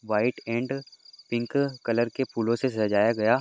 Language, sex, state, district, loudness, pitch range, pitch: Hindi, male, Maharashtra, Dhule, -27 LUFS, 115-130 Hz, 120 Hz